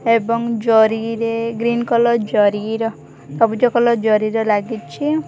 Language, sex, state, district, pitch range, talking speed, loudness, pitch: Odia, female, Odisha, Khordha, 220-235 Hz, 135 wpm, -17 LUFS, 230 Hz